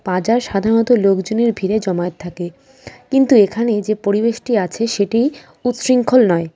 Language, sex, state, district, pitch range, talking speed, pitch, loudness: Bengali, female, West Bengal, Cooch Behar, 190-235 Hz, 135 wpm, 220 Hz, -16 LUFS